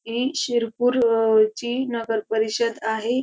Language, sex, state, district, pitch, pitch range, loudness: Marathi, female, Maharashtra, Dhule, 230 Hz, 220-245 Hz, -22 LUFS